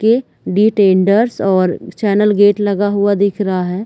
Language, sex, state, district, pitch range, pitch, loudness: Hindi, female, Chhattisgarh, Rajnandgaon, 190-205 Hz, 200 Hz, -14 LUFS